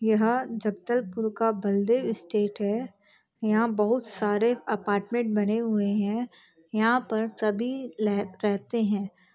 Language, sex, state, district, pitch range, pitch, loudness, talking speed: Hindi, female, Chhattisgarh, Bastar, 205-230 Hz, 220 Hz, -27 LUFS, 120 wpm